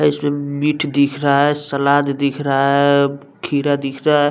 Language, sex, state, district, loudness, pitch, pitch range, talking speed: Hindi, male, Bihar, West Champaran, -17 LUFS, 140 Hz, 140-145 Hz, 180 wpm